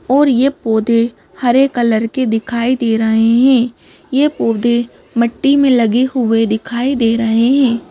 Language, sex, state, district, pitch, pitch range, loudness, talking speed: Hindi, female, Madhya Pradesh, Bhopal, 235 Hz, 230-260 Hz, -14 LUFS, 150 wpm